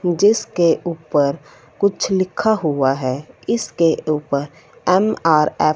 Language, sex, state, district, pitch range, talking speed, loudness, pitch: Hindi, female, Punjab, Fazilka, 150-190 Hz, 105 wpm, -18 LUFS, 165 Hz